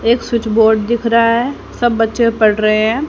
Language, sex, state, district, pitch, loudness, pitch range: Hindi, female, Haryana, Rohtak, 230 Hz, -14 LUFS, 220-235 Hz